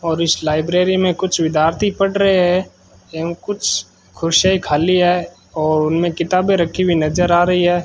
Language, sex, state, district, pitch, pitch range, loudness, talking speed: Hindi, male, Rajasthan, Bikaner, 175 Hz, 155-185 Hz, -16 LUFS, 175 wpm